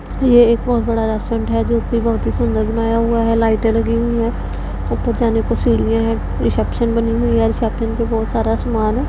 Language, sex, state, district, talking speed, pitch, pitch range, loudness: Hindi, female, Punjab, Pathankot, 220 wpm, 230 Hz, 225-230 Hz, -17 LUFS